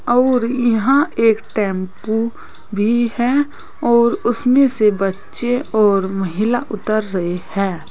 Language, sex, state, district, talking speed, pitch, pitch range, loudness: Hindi, female, Uttar Pradesh, Saharanpur, 115 wpm, 225 Hz, 200-245 Hz, -16 LUFS